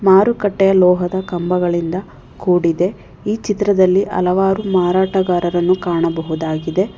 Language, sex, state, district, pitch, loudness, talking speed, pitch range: Kannada, female, Karnataka, Bangalore, 185 Hz, -16 LUFS, 75 wpm, 175-195 Hz